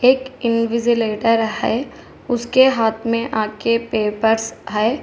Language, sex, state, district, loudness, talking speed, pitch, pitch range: Hindi, female, Telangana, Hyderabad, -18 LUFS, 105 wpm, 230 Hz, 220-240 Hz